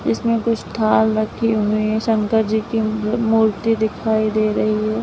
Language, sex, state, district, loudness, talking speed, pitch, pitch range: Hindi, female, Uttar Pradesh, Lalitpur, -18 LUFS, 165 wpm, 220 Hz, 215-225 Hz